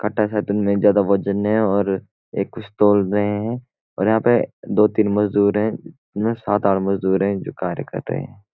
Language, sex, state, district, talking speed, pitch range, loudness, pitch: Hindi, male, Uttarakhand, Uttarkashi, 190 wpm, 100-105 Hz, -20 LUFS, 105 Hz